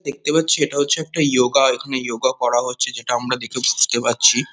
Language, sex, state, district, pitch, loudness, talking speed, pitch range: Bengali, male, West Bengal, Kolkata, 130 Hz, -18 LUFS, 200 wpm, 120-145 Hz